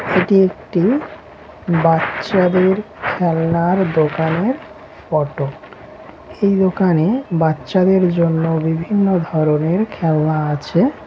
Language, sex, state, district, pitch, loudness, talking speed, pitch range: Bengali, male, West Bengal, Malda, 175 Hz, -17 LUFS, 85 wpm, 160-195 Hz